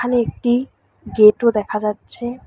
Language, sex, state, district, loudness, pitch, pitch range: Bengali, female, West Bengal, Alipurduar, -17 LUFS, 240 Hz, 210-245 Hz